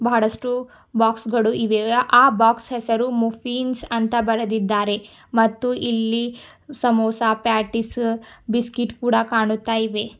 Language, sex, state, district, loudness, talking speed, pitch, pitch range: Kannada, female, Karnataka, Bidar, -20 LUFS, 105 wpm, 230 Hz, 225-240 Hz